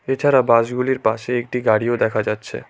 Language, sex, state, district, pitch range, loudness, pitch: Bengali, male, West Bengal, Cooch Behar, 110-125 Hz, -19 LUFS, 120 Hz